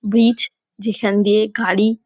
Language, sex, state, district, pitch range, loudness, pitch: Bengali, female, West Bengal, Dakshin Dinajpur, 205-230 Hz, -17 LUFS, 220 Hz